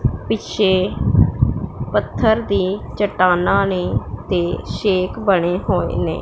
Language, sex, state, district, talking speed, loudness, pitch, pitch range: Punjabi, female, Punjab, Pathankot, 95 wpm, -18 LUFS, 185 Hz, 180-200 Hz